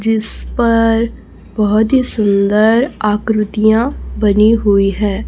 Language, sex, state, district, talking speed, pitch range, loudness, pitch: Hindi, female, Chhattisgarh, Raipur, 100 wpm, 210-225 Hz, -13 LUFS, 215 Hz